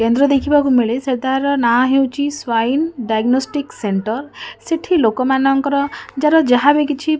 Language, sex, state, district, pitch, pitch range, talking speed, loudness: Odia, female, Odisha, Khordha, 270 Hz, 245-290 Hz, 140 wpm, -16 LUFS